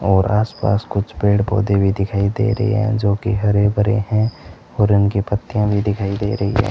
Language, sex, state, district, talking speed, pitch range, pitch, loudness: Hindi, male, Rajasthan, Bikaner, 205 wpm, 100-105 Hz, 105 Hz, -18 LUFS